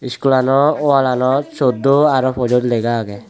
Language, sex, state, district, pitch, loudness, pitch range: Chakma, male, Tripura, West Tripura, 130 Hz, -15 LUFS, 125-140 Hz